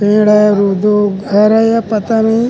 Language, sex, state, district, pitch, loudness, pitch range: Chhattisgarhi, male, Chhattisgarh, Rajnandgaon, 210 Hz, -11 LUFS, 205-220 Hz